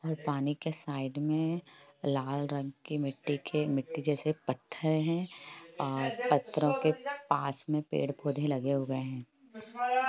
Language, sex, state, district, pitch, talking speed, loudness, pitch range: Hindi, female, Jharkhand, Jamtara, 150 Hz, 140 wpm, -33 LUFS, 140-160 Hz